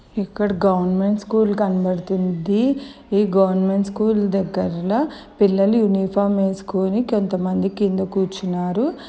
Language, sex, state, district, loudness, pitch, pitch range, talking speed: Telugu, female, Telangana, Nalgonda, -20 LUFS, 195 Hz, 190-210 Hz, 90 wpm